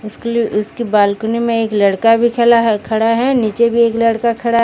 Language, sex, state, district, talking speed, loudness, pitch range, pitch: Hindi, female, Odisha, Sambalpur, 180 wpm, -14 LUFS, 215-235 Hz, 230 Hz